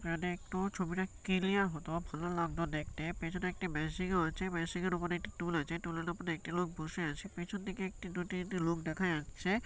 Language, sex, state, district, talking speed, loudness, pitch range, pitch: Bengali, male, West Bengal, North 24 Parganas, 205 wpm, -37 LUFS, 165-185 Hz, 175 Hz